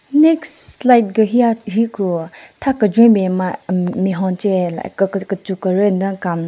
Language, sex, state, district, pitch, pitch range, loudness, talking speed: Rengma, female, Nagaland, Kohima, 195 Hz, 185-230 Hz, -16 LUFS, 175 wpm